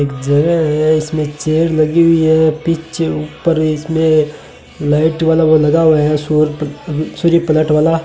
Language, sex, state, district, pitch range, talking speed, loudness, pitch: Hindi, male, Rajasthan, Bikaner, 150-160 Hz, 155 wpm, -13 LUFS, 155 Hz